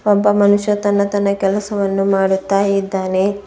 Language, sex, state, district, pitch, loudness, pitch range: Kannada, female, Karnataka, Bidar, 200 Hz, -16 LUFS, 195-205 Hz